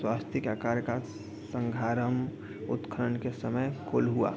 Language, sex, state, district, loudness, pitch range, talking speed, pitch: Hindi, male, Bihar, East Champaran, -32 LUFS, 105-125 Hz, 110 wpm, 115 Hz